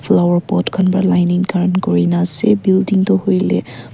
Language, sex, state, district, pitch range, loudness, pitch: Nagamese, female, Nagaland, Kohima, 150-190 Hz, -15 LUFS, 185 Hz